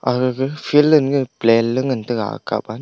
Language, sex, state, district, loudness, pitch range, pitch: Wancho, male, Arunachal Pradesh, Longding, -18 LUFS, 115-140 Hz, 125 Hz